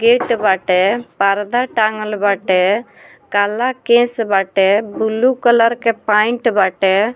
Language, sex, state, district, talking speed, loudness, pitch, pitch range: Bhojpuri, female, Bihar, Muzaffarpur, 110 wpm, -15 LUFS, 215 Hz, 200-235 Hz